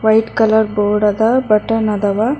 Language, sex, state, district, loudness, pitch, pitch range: Kannada, female, Karnataka, Bangalore, -14 LUFS, 220 Hz, 210-225 Hz